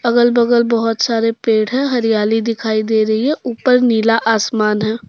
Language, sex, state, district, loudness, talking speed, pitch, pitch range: Hindi, female, Jharkhand, Deoghar, -15 LUFS, 175 wpm, 225 Hz, 220-240 Hz